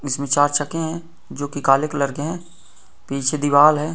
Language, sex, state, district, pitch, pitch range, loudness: Hindi, male, Uttar Pradesh, Ghazipur, 145 Hz, 140-155 Hz, -19 LUFS